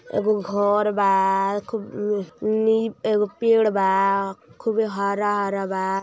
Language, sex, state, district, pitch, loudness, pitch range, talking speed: Hindi, female, Uttar Pradesh, Ghazipur, 205 Hz, -22 LUFS, 195-215 Hz, 110 wpm